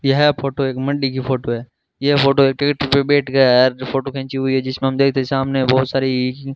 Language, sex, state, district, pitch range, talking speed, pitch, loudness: Hindi, male, Rajasthan, Bikaner, 130-140 Hz, 190 wpm, 135 Hz, -17 LUFS